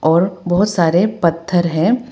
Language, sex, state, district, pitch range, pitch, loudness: Hindi, female, Arunachal Pradesh, Papum Pare, 165-195 Hz, 175 Hz, -16 LUFS